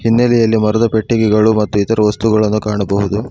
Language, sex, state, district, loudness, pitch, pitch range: Kannada, male, Karnataka, Bangalore, -13 LUFS, 110 Hz, 105-115 Hz